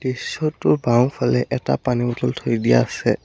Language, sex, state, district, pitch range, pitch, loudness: Assamese, male, Assam, Sonitpur, 90-130 Hz, 120 Hz, -20 LUFS